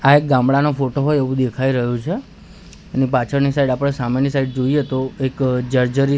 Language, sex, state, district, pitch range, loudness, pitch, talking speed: Gujarati, male, Gujarat, Gandhinagar, 130-140 Hz, -18 LUFS, 135 Hz, 185 wpm